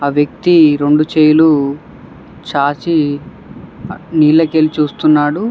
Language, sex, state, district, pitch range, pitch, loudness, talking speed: Telugu, male, Telangana, Hyderabad, 145-160 Hz, 150 Hz, -12 LUFS, 75 wpm